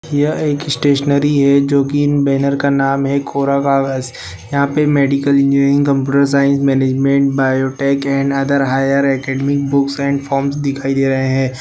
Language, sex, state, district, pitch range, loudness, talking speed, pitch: Hindi, male, Bihar, Bhagalpur, 135-140 Hz, -15 LUFS, 165 wpm, 140 Hz